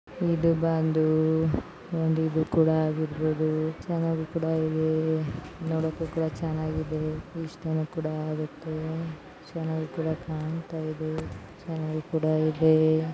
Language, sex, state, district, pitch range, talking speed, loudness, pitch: Kannada, female, Karnataka, Dharwad, 155-160 Hz, 105 wpm, -28 LUFS, 160 Hz